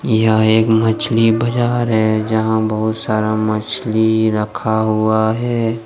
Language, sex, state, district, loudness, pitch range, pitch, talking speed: Hindi, male, Jharkhand, Deoghar, -16 LUFS, 110-115 Hz, 110 Hz, 125 wpm